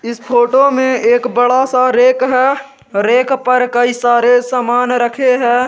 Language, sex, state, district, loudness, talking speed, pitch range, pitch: Hindi, male, Jharkhand, Garhwa, -12 LUFS, 160 wpm, 240-255 Hz, 250 Hz